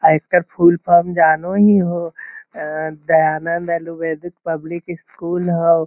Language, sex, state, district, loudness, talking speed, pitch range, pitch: Magahi, male, Bihar, Lakhisarai, -17 LUFS, 145 wpm, 160-175 Hz, 170 Hz